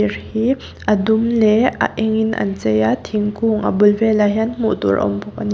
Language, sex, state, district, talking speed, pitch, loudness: Mizo, female, Mizoram, Aizawl, 205 wpm, 210 Hz, -17 LUFS